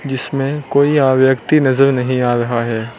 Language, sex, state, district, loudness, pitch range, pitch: Hindi, male, Rajasthan, Bikaner, -14 LUFS, 120-140 Hz, 130 Hz